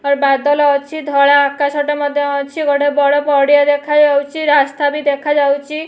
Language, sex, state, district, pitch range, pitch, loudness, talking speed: Odia, female, Odisha, Nuapada, 280-295 Hz, 285 Hz, -14 LUFS, 135 wpm